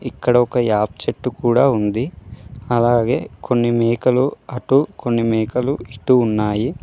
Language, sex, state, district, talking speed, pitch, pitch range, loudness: Telugu, male, Telangana, Mahabubabad, 125 wpm, 120 Hz, 110-125 Hz, -18 LUFS